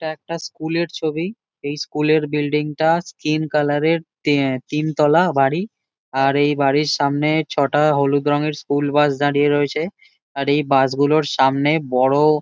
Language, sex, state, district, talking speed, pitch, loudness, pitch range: Bengali, male, West Bengal, Jalpaiguri, 160 wpm, 150 Hz, -19 LUFS, 145-155 Hz